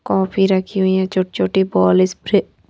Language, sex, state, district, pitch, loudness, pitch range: Hindi, female, Madhya Pradesh, Bhopal, 190 Hz, -17 LUFS, 185-190 Hz